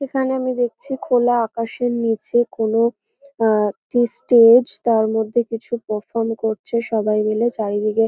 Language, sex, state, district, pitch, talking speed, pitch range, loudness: Bengali, female, West Bengal, North 24 Parganas, 230 Hz, 140 wpm, 220-240 Hz, -19 LUFS